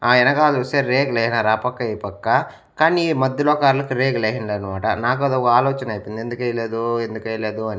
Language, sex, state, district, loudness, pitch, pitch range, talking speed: Telugu, male, Andhra Pradesh, Annamaya, -19 LUFS, 120 Hz, 110-135 Hz, 210 wpm